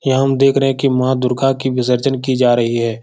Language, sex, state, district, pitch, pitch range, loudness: Hindi, male, Bihar, Jahanabad, 130 Hz, 125-135 Hz, -15 LUFS